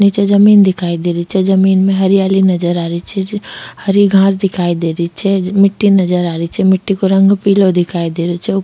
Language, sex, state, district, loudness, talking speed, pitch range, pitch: Rajasthani, female, Rajasthan, Churu, -12 LUFS, 220 wpm, 175-195 Hz, 190 Hz